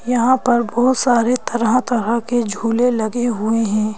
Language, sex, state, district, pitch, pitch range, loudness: Hindi, female, Madhya Pradesh, Bhopal, 240 Hz, 225-245 Hz, -17 LUFS